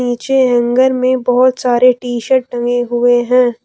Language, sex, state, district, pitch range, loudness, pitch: Hindi, female, Jharkhand, Deoghar, 245-255 Hz, -13 LUFS, 245 Hz